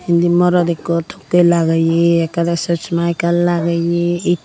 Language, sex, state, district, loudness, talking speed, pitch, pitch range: Chakma, female, Tripura, Unakoti, -15 LUFS, 150 wpm, 170 Hz, 170-175 Hz